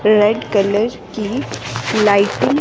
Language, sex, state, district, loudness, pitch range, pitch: Hindi, female, Himachal Pradesh, Shimla, -16 LUFS, 205-225 Hz, 215 Hz